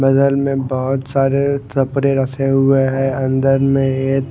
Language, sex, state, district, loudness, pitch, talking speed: Hindi, male, Haryana, Jhajjar, -16 LUFS, 135 Hz, 155 wpm